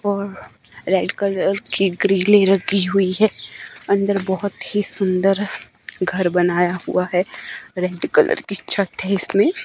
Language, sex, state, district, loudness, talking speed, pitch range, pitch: Hindi, female, Himachal Pradesh, Shimla, -19 LUFS, 135 wpm, 185-200 Hz, 195 Hz